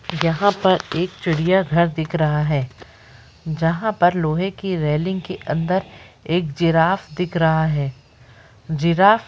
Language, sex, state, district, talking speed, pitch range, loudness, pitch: Hindi, female, Bihar, Saran, 130 wpm, 150-185 Hz, -20 LUFS, 165 Hz